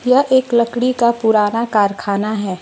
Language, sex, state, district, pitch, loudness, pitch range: Hindi, female, West Bengal, Alipurduar, 230 Hz, -16 LUFS, 210-240 Hz